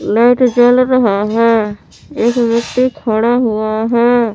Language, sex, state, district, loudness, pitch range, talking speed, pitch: Hindi, female, Jharkhand, Palamu, -13 LUFS, 220-245 Hz, 125 wpm, 235 Hz